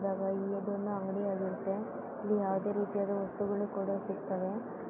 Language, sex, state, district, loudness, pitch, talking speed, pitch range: Kannada, female, Karnataka, Bellary, -35 LUFS, 200 Hz, 355 wpm, 195-205 Hz